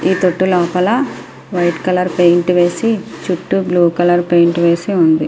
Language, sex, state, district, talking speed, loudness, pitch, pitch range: Telugu, female, Andhra Pradesh, Srikakulam, 160 wpm, -14 LUFS, 175 Hz, 175-185 Hz